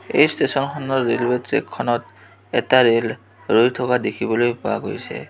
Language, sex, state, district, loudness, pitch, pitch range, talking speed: Assamese, male, Assam, Kamrup Metropolitan, -20 LUFS, 120 Hz, 115-125 Hz, 145 wpm